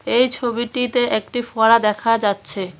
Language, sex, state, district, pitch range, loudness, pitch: Bengali, female, West Bengal, Cooch Behar, 210-245 Hz, -18 LUFS, 230 Hz